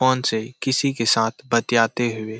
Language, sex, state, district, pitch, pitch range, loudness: Hindi, male, Jharkhand, Sahebganj, 115 Hz, 115-130 Hz, -21 LUFS